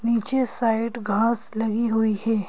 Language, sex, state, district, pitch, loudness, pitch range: Hindi, female, Madhya Pradesh, Bhopal, 225 Hz, -20 LUFS, 220-235 Hz